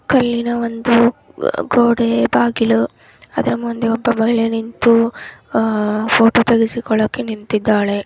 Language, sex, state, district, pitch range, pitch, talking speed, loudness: Kannada, male, Karnataka, Dharwad, 215-235 Hz, 230 Hz, 95 wpm, -16 LUFS